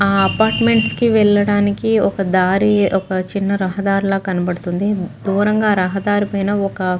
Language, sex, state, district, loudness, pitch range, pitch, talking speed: Telugu, female, Andhra Pradesh, Guntur, -16 LUFS, 190-205 Hz, 200 Hz, 135 wpm